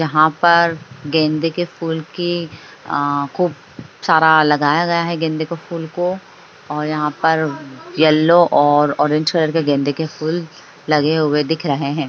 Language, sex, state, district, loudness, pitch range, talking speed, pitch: Hindi, female, Bihar, Bhagalpur, -17 LUFS, 150-170 Hz, 160 wpm, 155 Hz